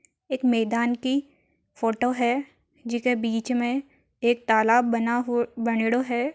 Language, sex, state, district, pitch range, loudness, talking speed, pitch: Marwari, female, Rajasthan, Churu, 235-255 Hz, -24 LUFS, 130 wpm, 240 Hz